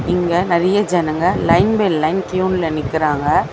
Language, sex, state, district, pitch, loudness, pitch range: Tamil, female, Tamil Nadu, Chennai, 175 Hz, -16 LUFS, 160-185 Hz